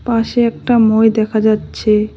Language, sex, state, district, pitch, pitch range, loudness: Bengali, female, West Bengal, Cooch Behar, 220 Hz, 215-230 Hz, -14 LUFS